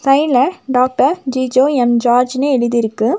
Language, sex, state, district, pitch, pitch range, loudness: Tamil, female, Tamil Nadu, Nilgiris, 255 Hz, 245-275 Hz, -14 LUFS